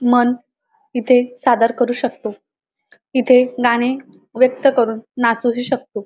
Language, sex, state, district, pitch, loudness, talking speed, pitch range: Marathi, female, Maharashtra, Dhule, 245 Hz, -17 LUFS, 110 wpm, 240-260 Hz